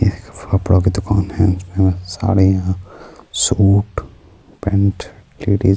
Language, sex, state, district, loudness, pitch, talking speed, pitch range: Urdu, male, Bihar, Saharsa, -17 LUFS, 95 Hz, 85 wpm, 95-100 Hz